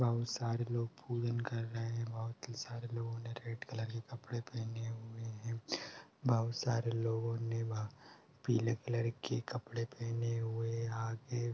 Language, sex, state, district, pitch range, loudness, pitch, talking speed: Hindi, male, Uttar Pradesh, Ghazipur, 115-120 Hz, -39 LUFS, 115 Hz, 165 wpm